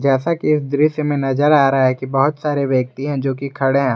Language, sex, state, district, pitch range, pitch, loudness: Hindi, male, Jharkhand, Garhwa, 135-150 Hz, 140 Hz, -17 LUFS